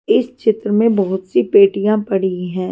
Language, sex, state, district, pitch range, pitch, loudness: Hindi, female, Maharashtra, Washim, 190-215 Hz, 200 Hz, -16 LUFS